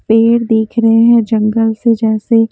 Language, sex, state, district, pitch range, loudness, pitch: Hindi, female, Haryana, Jhajjar, 220-230 Hz, -11 LUFS, 225 Hz